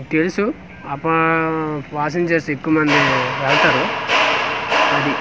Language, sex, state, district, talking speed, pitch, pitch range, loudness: Telugu, male, Andhra Pradesh, Manyam, 105 wpm, 155 Hz, 150-165 Hz, -17 LUFS